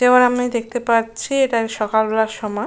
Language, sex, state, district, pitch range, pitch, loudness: Bengali, female, West Bengal, Jalpaiguri, 220-245 Hz, 230 Hz, -18 LUFS